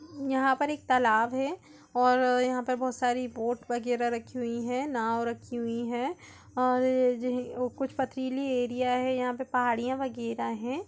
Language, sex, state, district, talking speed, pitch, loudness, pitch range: Hindi, female, Bihar, Gaya, 160 wpm, 250 Hz, -29 LUFS, 240-260 Hz